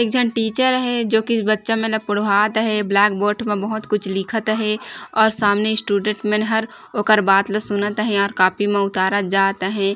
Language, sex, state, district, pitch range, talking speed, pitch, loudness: Chhattisgarhi, female, Chhattisgarh, Raigarh, 200-220 Hz, 200 wpm, 210 Hz, -18 LUFS